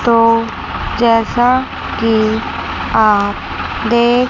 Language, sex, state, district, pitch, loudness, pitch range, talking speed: Hindi, female, Chandigarh, Chandigarh, 230 Hz, -14 LUFS, 220-240 Hz, 70 wpm